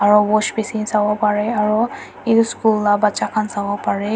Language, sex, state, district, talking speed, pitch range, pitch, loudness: Nagamese, female, Nagaland, Dimapur, 175 wpm, 210-220 Hz, 210 Hz, -18 LUFS